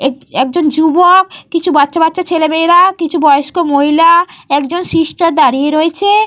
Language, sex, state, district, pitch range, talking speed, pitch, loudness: Bengali, female, Jharkhand, Jamtara, 295-345 Hz, 125 wpm, 325 Hz, -11 LUFS